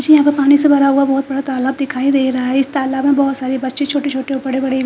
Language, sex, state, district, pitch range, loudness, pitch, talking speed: Hindi, female, Punjab, Fazilka, 265-280 Hz, -15 LUFS, 270 Hz, 310 wpm